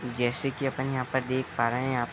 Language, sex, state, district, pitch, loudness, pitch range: Hindi, male, Bihar, Sitamarhi, 130 Hz, -29 LUFS, 125-130 Hz